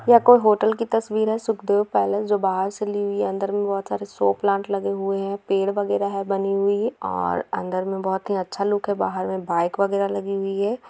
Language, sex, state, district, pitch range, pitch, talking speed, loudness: Hindi, female, Bihar, Gaya, 190-205 Hz, 200 Hz, 235 wpm, -22 LUFS